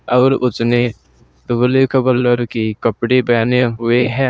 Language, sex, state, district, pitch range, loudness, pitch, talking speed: Hindi, male, Uttar Pradesh, Saharanpur, 115-125 Hz, -15 LUFS, 120 Hz, 85 wpm